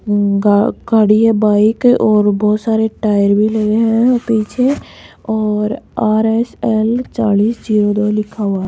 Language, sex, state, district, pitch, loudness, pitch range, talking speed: Hindi, female, Rajasthan, Jaipur, 215 Hz, -14 LUFS, 210-225 Hz, 130 wpm